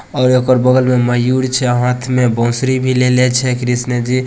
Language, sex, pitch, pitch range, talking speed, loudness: Bhojpuri, male, 125 Hz, 125-130 Hz, 195 wpm, -13 LUFS